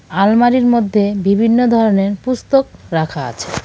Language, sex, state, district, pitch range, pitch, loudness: Bengali, female, West Bengal, Cooch Behar, 195-240 Hz, 210 Hz, -14 LUFS